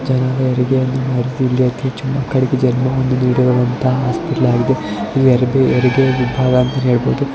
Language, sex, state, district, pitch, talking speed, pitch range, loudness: Kannada, male, Karnataka, Shimoga, 130 Hz, 90 wpm, 125-130 Hz, -15 LUFS